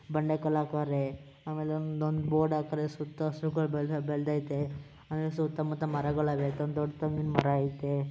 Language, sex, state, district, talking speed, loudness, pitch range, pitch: Kannada, male, Karnataka, Mysore, 125 wpm, -32 LUFS, 145-155 Hz, 150 Hz